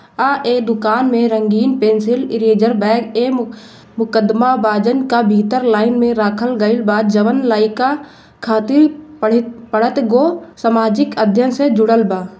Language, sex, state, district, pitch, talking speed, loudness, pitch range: Bhojpuri, female, Bihar, Gopalganj, 230 Hz, 140 wpm, -14 LUFS, 220-250 Hz